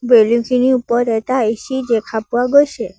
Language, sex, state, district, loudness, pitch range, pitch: Assamese, female, Assam, Sonitpur, -15 LUFS, 225-255 Hz, 240 Hz